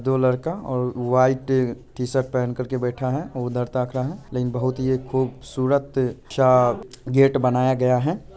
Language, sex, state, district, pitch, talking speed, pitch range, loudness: Hindi, male, Bihar, Purnia, 130 Hz, 165 wpm, 125-130 Hz, -22 LUFS